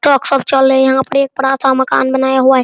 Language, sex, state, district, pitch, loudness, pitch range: Hindi, male, Bihar, Araria, 265 Hz, -12 LUFS, 265-275 Hz